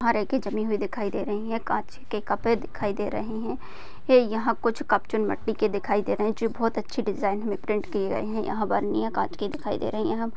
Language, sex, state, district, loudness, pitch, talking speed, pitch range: Hindi, female, Maharashtra, Pune, -27 LUFS, 215 Hz, 230 wpm, 200-225 Hz